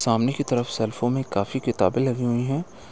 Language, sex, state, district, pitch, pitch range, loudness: Hindi, male, Uttar Pradesh, Etah, 120 Hz, 115-130 Hz, -24 LUFS